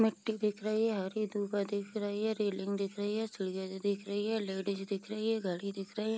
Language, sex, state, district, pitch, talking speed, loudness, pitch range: Hindi, female, Bihar, Vaishali, 205 Hz, 250 wpm, -35 LUFS, 200-215 Hz